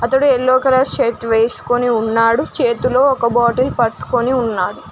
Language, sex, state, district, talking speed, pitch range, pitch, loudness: Telugu, female, Telangana, Mahabubabad, 135 wpm, 230-260 Hz, 245 Hz, -15 LUFS